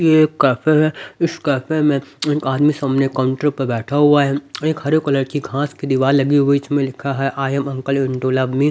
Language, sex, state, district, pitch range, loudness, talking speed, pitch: Hindi, male, Haryana, Rohtak, 135-150 Hz, -17 LUFS, 240 wpm, 140 Hz